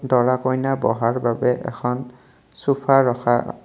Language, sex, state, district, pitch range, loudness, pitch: Assamese, male, Assam, Kamrup Metropolitan, 120-135 Hz, -20 LUFS, 125 Hz